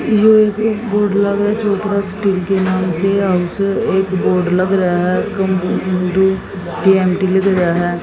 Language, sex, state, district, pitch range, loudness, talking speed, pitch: Hindi, female, Haryana, Jhajjar, 185-200 Hz, -15 LUFS, 110 wpm, 190 Hz